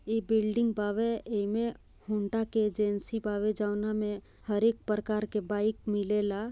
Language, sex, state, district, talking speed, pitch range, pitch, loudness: Bhojpuri, female, Bihar, Gopalganj, 140 wpm, 210-225 Hz, 215 Hz, -31 LUFS